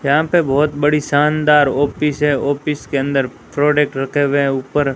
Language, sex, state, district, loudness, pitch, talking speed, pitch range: Hindi, female, Rajasthan, Bikaner, -16 LUFS, 145 Hz, 180 wpm, 140-150 Hz